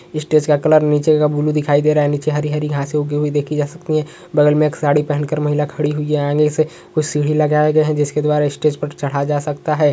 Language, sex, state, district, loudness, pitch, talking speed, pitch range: Hindi, male, Chhattisgarh, Sukma, -17 LUFS, 150 Hz, 270 wpm, 145-150 Hz